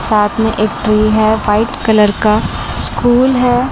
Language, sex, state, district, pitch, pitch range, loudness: Hindi, female, Chandigarh, Chandigarh, 215 Hz, 215-240 Hz, -12 LUFS